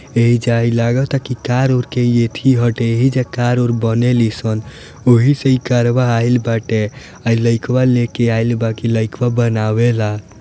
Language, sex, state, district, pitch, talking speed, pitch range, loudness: Bhojpuri, male, Bihar, Gopalganj, 120 Hz, 165 wpm, 115-125 Hz, -15 LUFS